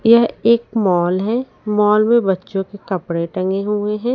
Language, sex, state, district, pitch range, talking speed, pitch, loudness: Hindi, female, Haryana, Rohtak, 190-230 Hz, 175 wpm, 210 Hz, -17 LUFS